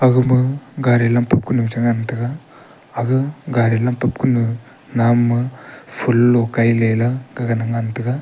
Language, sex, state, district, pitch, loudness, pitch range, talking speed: Wancho, male, Arunachal Pradesh, Longding, 120 Hz, -18 LUFS, 115-130 Hz, 110 wpm